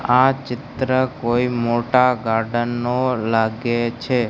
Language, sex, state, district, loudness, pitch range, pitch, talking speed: Gujarati, male, Gujarat, Gandhinagar, -19 LUFS, 120-125 Hz, 120 Hz, 110 wpm